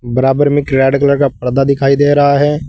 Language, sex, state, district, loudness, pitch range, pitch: Hindi, male, Uttar Pradesh, Saharanpur, -12 LUFS, 135-145 Hz, 140 Hz